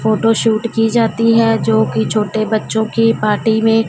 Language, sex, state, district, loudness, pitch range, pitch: Hindi, female, Punjab, Fazilka, -14 LUFS, 215-225 Hz, 220 Hz